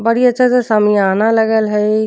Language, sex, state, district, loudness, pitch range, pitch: Bhojpuri, female, Uttar Pradesh, Deoria, -13 LUFS, 210-230 Hz, 220 Hz